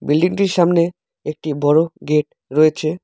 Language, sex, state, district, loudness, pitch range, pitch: Bengali, male, West Bengal, Alipurduar, -17 LUFS, 150-175 Hz, 155 Hz